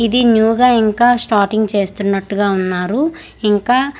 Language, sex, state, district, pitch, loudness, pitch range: Telugu, female, Andhra Pradesh, Manyam, 220 Hz, -14 LUFS, 200-245 Hz